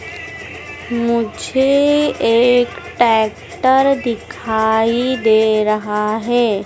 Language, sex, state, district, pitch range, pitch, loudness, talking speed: Hindi, female, Madhya Pradesh, Dhar, 220-255 Hz, 235 Hz, -15 LUFS, 65 wpm